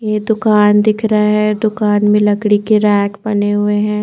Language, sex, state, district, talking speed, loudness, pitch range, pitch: Hindi, female, Chandigarh, Chandigarh, 195 wpm, -13 LUFS, 205-215 Hz, 210 Hz